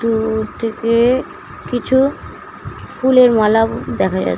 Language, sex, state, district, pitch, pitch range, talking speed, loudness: Bengali, female, West Bengal, Malda, 230 Hz, 220-250 Hz, 80 wpm, -15 LUFS